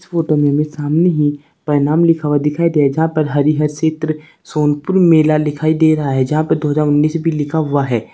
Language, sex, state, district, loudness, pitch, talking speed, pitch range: Hindi, male, Uttar Pradesh, Saharanpur, -15 LUFS, 150 Hz, 230 wpm, 145-160 Hz